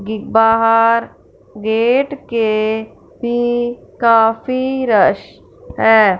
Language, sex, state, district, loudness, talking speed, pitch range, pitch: Hindi, female, Punjab, Fazilka, -15 LUFS, 70 wpm, 220-240 Hz, 225 Hz